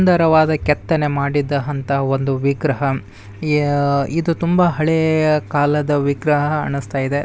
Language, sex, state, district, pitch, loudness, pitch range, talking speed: Kannada, male, Karnataka, Bijapur, 145 Hz, -18 LUFS, 140-155 Hz, 115 wpm